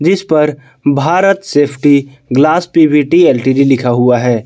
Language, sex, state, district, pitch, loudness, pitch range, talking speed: Hindi, male, Jharkhand, Palamu, 145 Hz, -11 LUFS, 135-160 Hz, 190 wpm